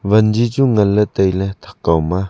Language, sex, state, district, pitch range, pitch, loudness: Wancho, male, Arunachal Pradesh, Longding, 95-110 Hz, 100 Hz, -16 LUFS